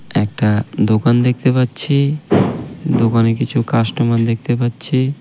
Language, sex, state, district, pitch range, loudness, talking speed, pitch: Bengali, male, West Bengal, Cooch Behar, 115-130 Hz, -16 LUFS, 105 wpm, 120 Hz